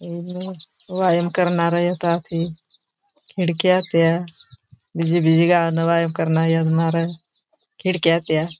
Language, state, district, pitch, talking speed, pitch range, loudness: Bhili, Maharashtra, Dhule, 170 Hz, 70 wpm, 165-180 Hz, -20 LUFS